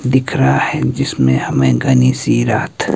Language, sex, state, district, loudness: Hindi, male, Himachal Pradesh, Shimla, -14 LUFS